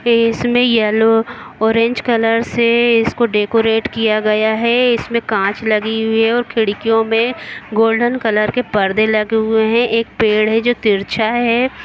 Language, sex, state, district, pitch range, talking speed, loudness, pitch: Hindi, female, Jharkhand, Jamtara, 220-235 Hz, 155 wpm, -15 LUFS, 225 Hz